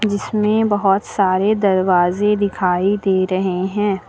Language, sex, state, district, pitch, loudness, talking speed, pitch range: Hindi, female, Uttar Pradesh, Lucknow, 195 Hz, -17 LUFS, 115 wpm, 185-205 Hz